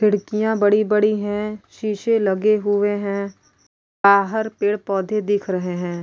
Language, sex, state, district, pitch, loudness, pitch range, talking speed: Hindi, female, Goa, North and South Goa, 205 Hz, -20 LUFS, 200-215 Hz, 140 wpm